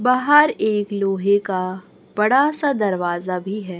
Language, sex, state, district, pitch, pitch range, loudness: Hindi, female, Chhattisgarh, Raipur, 205 Hz, 185-250 Hz, -19 LUFS